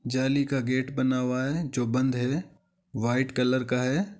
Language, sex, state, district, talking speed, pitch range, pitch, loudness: Hindi, male, Rajasthan, Nagaur, 185 wpm, 125-140 Hz, 130 Hz, -27 LUFS